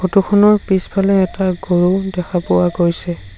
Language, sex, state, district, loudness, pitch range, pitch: Assamese, male, Assam, Sonitpur, -15 LUFS, 175-195 Hz, 185 Hz